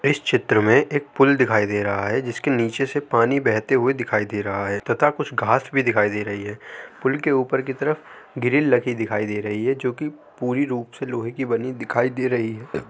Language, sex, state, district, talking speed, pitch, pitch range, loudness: Hindi, male, Uttar Pradesh, Hamirpur, 230 wpm, 125 Hz, 110-135 Hz, -21 LUFS